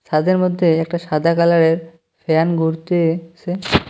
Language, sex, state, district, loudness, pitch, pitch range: Bengali, male, West Bengal, Cooch Behar, -17 LUFS, 165 Hz, 160-175 Hz